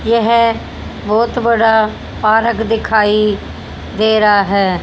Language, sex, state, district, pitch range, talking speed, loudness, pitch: Hindi, female, Haryana, Jhajjar, 210-230 Hz, 100 wpm, -13 LUFS, 220 Hz